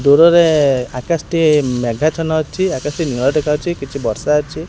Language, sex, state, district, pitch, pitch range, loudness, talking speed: Odia, male, Odisha, Khordha, 150 Hz, 140-165 Hz, -15 LUFS, 155 wpm